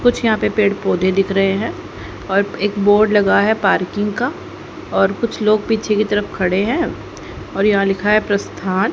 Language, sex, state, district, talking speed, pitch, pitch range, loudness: Hindi, female, Haryana, Charkhi Dadri, 190 wpm, 205 Hz, 195-215 Hz, -17 LUFS